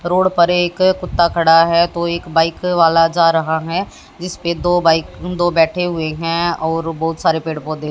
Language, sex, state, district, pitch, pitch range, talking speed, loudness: Hindi, female, Haryana, Jhajjar, 170 Hz, 165-175 Hz, 180 wpm, -16 LUFS